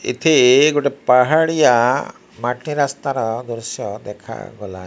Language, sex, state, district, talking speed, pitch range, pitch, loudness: Odia, male, Odisha, Malkangiri, 85 wpm, 115-145 Hz, 125 Hz, -16 LUFS